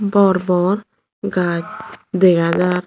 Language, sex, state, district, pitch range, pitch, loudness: Chakma, female, Tripura, Unakoti, 180-200 Hz, 185 Hz, -17 LUFS